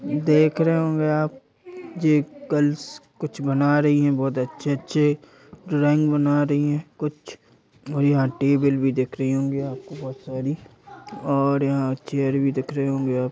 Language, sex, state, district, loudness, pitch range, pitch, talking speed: Hindi, male, Chhattisgarh, Raigarh, -22 LUFS, 135-150 Hz, 145 Hz, 145 wpm